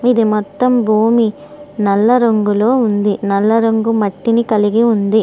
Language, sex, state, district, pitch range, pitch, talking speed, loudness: Telugu, female, Andhra Pradesh, Srikakulam, 210-235 Hz, 220 Hz, 125 wpm, -14 LUFS